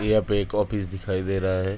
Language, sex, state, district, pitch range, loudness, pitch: Hindi, male, Uttar Pradesh, Budaun, 95-105 Hz, -25 LUFS, 100 Hz